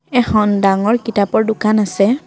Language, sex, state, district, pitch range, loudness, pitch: Assamese, female, Assam, Kamrup Metropolitan, 200-225 Hz, -15 LUFS, 215 Hz